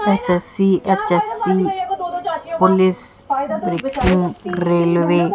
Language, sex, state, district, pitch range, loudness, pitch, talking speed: Hindi, female, Haryana, Jhajjar, 175-270 Hz, -18 LUFS, 190 Hz, 80 wpm